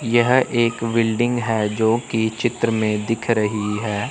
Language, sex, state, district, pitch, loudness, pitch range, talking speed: Hindi, male, Chandigarh, Chandigarh, 115 Hz, -20 LUFS, 110-120 Hz, 160 wpm